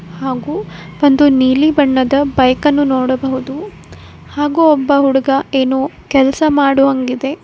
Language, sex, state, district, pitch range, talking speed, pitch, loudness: Kannada, female, Karnataka, Koppal, 260-290 Hz, 105 wpm, 275 Hz, -13 LUFS